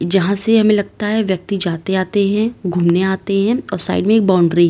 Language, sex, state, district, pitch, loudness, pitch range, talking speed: Hindi, female, Uttar Pradesh, Lalitpur, 195 Hz, -16 LUFS, 185-210 Hz, 230 wpm